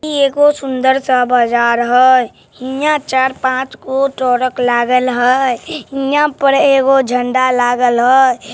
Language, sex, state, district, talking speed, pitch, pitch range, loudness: Maithili, male, Bihar, Samastipur, 125 wpm, 260 Hz, 250-270 Hz, -13 LUFS